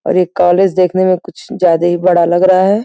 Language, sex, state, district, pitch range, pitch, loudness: Hindi, female, Uttar Pradesh, Gorakhpur, 175-185 Hz, 185 Hz, -12 LUFS